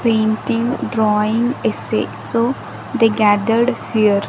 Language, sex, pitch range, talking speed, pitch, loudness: English, female, 215-235 Hz, 100 wpm, 225 Hz, -17 LUFS